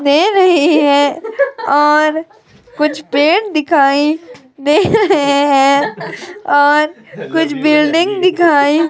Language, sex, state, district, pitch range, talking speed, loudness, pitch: Hindi, female, Himachal Pradesh, Shimla, 285-350 Hz, 100 wpm, -12 LUFS, 305 Hz